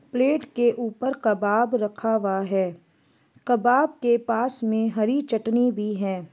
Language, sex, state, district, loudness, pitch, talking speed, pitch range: Hindi, female, Chhattisgarh, Bastar, -23 LUFS, 225 Hz, 140 wpm, 210-245 Hz